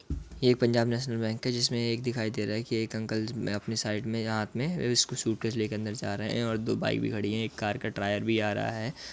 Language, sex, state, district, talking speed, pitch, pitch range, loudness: Hindi, male, Uttar Pradesh, Muzaffarnagar, 270 wpm, 110 Hz, 105-120 Hz, -30 LUFS